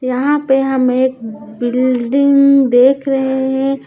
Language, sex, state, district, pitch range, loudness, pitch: Hindi, female, Chhattisgarh, Raipur, 250-275 Hz, -13 LUFS, 265 Hz